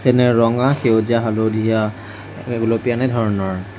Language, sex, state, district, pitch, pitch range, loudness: Assamese, male, Assam, Sonitpur, 115 Hz, 110-120 Hz, -18 LUFS